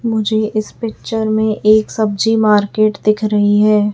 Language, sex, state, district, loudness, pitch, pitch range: Hindi, female, Chhattisgarh, Raipur, -14 LUFS, 215 Hz, 210-220 Hz